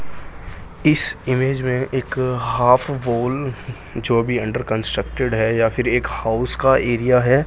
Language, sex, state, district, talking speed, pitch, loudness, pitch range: Hindi, male, Bihar, Jahanabad, 135 wpm, 125 Hz, -19 LUFS, 115-130 Hz